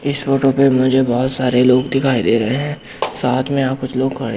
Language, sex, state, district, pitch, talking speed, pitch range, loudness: Hindi, male, Madhya Pradesh, Umaria, 130 Hz, 235 wpm, 125-135 Hz, -16 LUFS